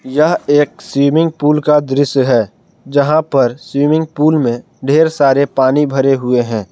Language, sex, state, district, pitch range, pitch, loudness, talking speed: Hindi, male, Jharkhand, Palamu, 135-150 Hz, 145 Hz, -13 LUFS, 160 wpm